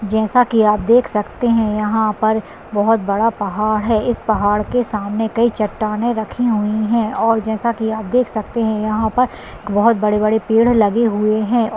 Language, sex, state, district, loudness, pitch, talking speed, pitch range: Hindi, female, Uttarakhand, Uttarkashi, -17 LUFS, 220 Hz, 195 wpm, 215-230 Hz